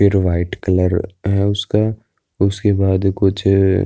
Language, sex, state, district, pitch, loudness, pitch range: Hindi, male, Uttar Pradesh, Budaun, 95 Hz, -17 LUFS, 95-100 Hz